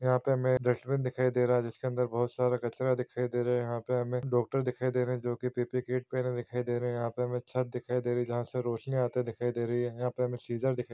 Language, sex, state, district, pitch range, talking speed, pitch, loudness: Hindi, male, Chhattisgarh, Bilaspur, 120-125 Hz, 300 wpm, 125 Hz, -32 LUFS